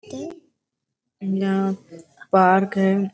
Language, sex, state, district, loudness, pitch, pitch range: Hindi, female, Uttar Pradesh, Varanasi, -20 LUFS, 195 Hz, 190-195 Hz